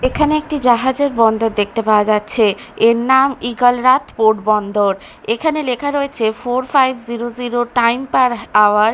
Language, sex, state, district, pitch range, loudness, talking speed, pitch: Bengali, female, Bihar, Katihar, 220-260 Hz, -15 LUFS, 160 wpm, 240 Hz